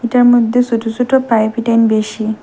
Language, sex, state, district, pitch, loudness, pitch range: Bengali, female, Assam, Hailakandi, 230 Hz, -13 LUFS, 220-245 Hz